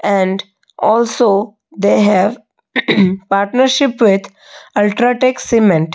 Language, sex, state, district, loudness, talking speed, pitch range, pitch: English, female, Odisha, Malkangiri, -14 LUFS, 90 wpm, 195-245 Hz, 210 Hz